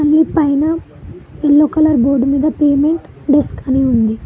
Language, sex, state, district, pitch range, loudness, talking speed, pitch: Telugu, female, Telangana, Mahabubabad, 275-310 Hz, -14 LUFS, 125 wpm, 295 Hz